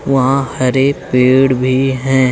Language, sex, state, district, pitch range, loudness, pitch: Hindi, male, Uttar Pradesh, Lucknow, 130-135 Hz, -13 LUFS, 130 Hz